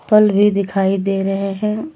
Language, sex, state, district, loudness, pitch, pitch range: Hindi, female, Jharkhand, Deoghar, -16 LUFS, 200 Hz, 195-210 Hz